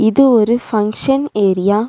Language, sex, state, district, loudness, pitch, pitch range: Tamil, female, Tamil Nadu, Nilgiris, -14 LUFS, 220 Hz, 210-255 Hz